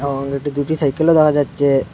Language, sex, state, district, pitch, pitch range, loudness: Bengali, male, Assam, Hailakandi, 145 Hz, 140-150 Hz, -17 LUFS